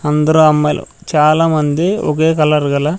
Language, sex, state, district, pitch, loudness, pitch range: Telugu, male, Andhra Pradesh, Sri Satya Sai, 155 Hz, -13 LUFS, 150-160 Hz